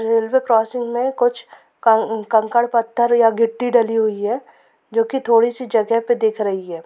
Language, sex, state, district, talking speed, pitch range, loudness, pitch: Hindi, female, Jharkhand, Sahebganj, 165 wpm, 225-240 Hz, -18 LUFS, 230 Hz